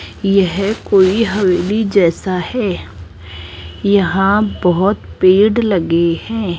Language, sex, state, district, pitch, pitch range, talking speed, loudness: Hindi, female, Rajasthan, Jaipur, 190 Hz, 170-205 Hz, 90 wpm, -14 LUFS